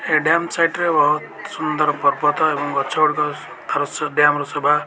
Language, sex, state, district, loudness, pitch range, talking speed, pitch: Odia, male, Odisha, Malkangiri, -19 LUFS, 145-155 Hz, 195 wpm, 150 Hz